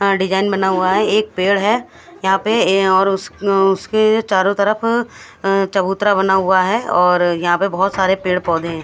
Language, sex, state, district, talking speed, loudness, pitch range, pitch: Hindi, female, Odisha, Khordha, 190 wpm, -16 LUFS, 190-205 Hz, 195 Hz